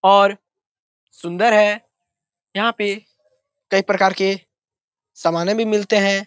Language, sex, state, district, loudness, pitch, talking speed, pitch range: Hindi, male, Bihar, Darbhanga, -18 LUFS, 200 Hz, 115 wpm, 195-215 Hz